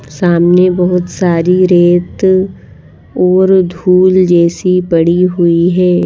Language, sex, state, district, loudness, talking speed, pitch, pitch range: Hindi, female, Madhya Pradesh, Bhopal, -10 LUFS, 100 wpm, 180 Hz, 175-185 Hz